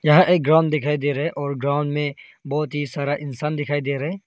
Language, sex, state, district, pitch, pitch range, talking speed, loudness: Hindi, male, Arunachal Pradesh, Longding, 145 Hz, 145-150 Hz, 255 wpm, -21 LUFS